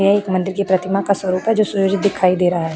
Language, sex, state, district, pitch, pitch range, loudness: Hindi, female, Uttarakhand, Tehri Garhwal, 195 Hz, 185-200 Hz, -17 LUFS